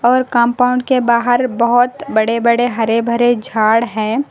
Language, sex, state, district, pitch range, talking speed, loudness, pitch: Hindi, female, Karnataka, Koppal, 230-250 Hz, 155 wpm, -14 LUFS, 235 Hz